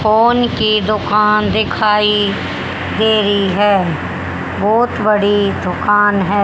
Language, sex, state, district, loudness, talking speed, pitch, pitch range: Hindi, female, Haryana, Charkhi Dadri, -14 LUFS, 100 wpm, 210 Hz, 200-215 Hz